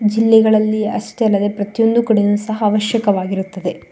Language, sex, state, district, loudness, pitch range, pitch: Kannada, female, Karnataka, Shimoga, -16 LUFS, 205-220 Hz, 215 Hz